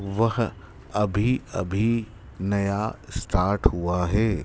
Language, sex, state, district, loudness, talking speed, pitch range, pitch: Hindi, male, Madhya Pradesh, Dhar, -25 LUFS, 95 wpm, 95-110 Hz, 100 Hz